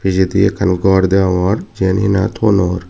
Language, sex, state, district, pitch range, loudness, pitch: Chakma, male, Tripura, Dhalai, 95-100 Hz, -14 LUFS, 95 Hz